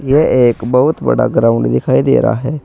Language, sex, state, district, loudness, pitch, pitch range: Hindi, male, Uttar Pradesh, Saharanpur, -12 LUFS, 125 Hz, 115-135 Hz